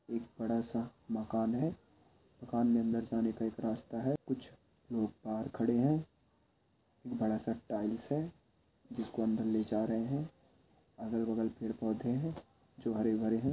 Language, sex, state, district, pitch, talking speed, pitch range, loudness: Hindi, male, Chhattisgarh, Korba, 115 Hz, 140 wpm, 110-120 Hz, -36 LUFS